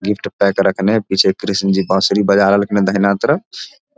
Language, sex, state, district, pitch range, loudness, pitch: Maithili, male, Bihar, Samastipur, 95-105 Hz, -15 LUFS, 100 Hz